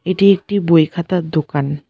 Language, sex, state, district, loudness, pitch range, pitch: Bengali, female, West Bengal, Alipurduar, -16 LUFS, 155-190 Hz, 170 Hz